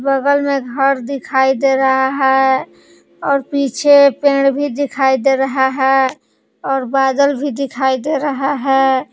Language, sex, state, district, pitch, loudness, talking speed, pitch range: Hindi, female, Jharkhand, Palamu, 270 Hz, -15 LUFS, 145 wpm, 265-280 Hz